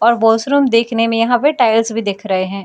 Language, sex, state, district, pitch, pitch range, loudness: Hindi, female, Bihar, Jamui, 230 Hz, 220-235 Hz, -14 LUFS